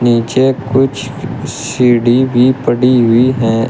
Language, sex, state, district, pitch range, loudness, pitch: Hindi, male, Uttar Pradesh, Shamli, 120-130 Hz, -12 LUFS, 125 Hz